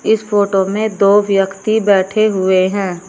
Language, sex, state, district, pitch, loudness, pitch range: Hindi, female, Uttar Pradesh, Shamli, 200 Hz, -14 LUFS, 190-215 Hz